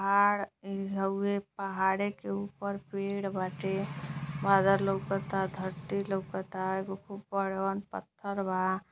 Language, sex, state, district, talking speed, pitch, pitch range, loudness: Bhojpuri, female, Uttar Pradesh, Gorakhpur, 115 wpm, 195 Hz, 190-200 Hz, -32 LUFS